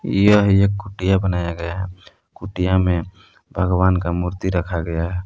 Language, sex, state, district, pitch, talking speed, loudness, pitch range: Hindi, male, Jharkhand, Palamu, 95 Hz, 160 wpm, -19 LUFS, 90-95 Hz